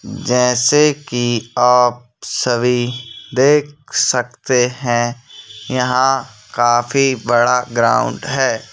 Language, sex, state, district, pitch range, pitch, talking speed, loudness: Hindi, male, Madhya Pradesh, Bhopal, 120-130 Hz, 125 Hz, 80 wpm, -16 LUFS